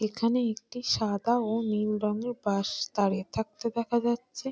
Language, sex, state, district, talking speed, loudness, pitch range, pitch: Bengali, female, West Bengal, Malda, 160 wpm, -29 LUFS, 210-235 Hz, 225 Hz